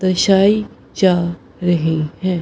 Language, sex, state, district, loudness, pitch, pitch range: Hindi, female, Bihar, Gaya, -16 LUFS, 185 Hz, 170-190 Hz